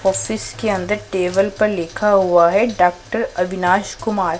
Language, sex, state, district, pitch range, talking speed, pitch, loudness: Hindi, female, Punjab, Pathankot, 175-200 Hz, 150 wpm, 185 Hz, -18 LUFS